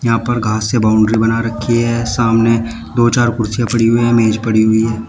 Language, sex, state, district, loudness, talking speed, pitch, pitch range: Hindi, male, Uttar Pradesh, Shamli, -14 LUFS, 210 wpm, 115 Hz, 110-120 Hz